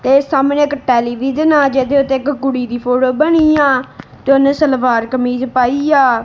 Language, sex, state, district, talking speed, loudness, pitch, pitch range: Punjabi, male, Punjab, Kapurthala, 180 wpm, -13 LUFS, 270 Hz, 255-285 Hz